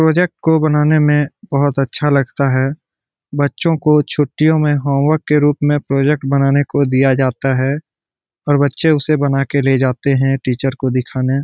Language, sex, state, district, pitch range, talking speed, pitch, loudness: Hindi, male, Bihar, Jamui, 135-150 Hz, 180 wpm, 145 Hz, -15 LUFS